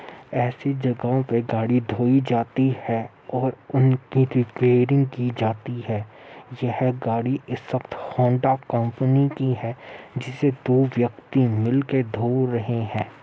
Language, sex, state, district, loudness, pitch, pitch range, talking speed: Hindi, male, Uttar Pradesh, Muzaffarnagar, -23 LUFS, 125 Hz, 120-130 Hz, 125 wpm